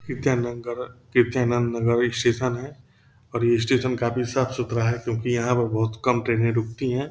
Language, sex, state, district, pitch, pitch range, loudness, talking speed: Hindi, male, Bihar, Purnia, 120 Hz, 120-125 Hz, -24 LUFS, 170 wpm